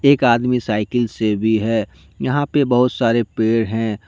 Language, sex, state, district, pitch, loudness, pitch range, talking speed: Hindi, male, Jharkhand, Deoghar, 115 Hz, -18 LUFS, 110-125 Hz, 175 wpm